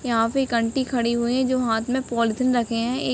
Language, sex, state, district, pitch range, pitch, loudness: Hindi, female, Uttar Pradesh, Ghazipur, 230-255 Hz, 240 Hz, -22 LUFS